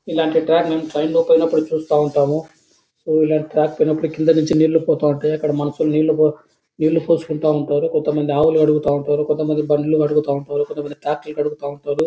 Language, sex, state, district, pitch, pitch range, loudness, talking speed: Telugu, male, Andhra Pradesh, Anantapur, 155 Hz, 150-160 Hz, -18 LUFS, 175 wpm